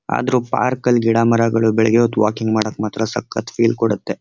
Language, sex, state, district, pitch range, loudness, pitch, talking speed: Kannada, male, Karnataka, Mysore, 110-120 Hz, -17 LUFS, 115 Hz, 170 wpm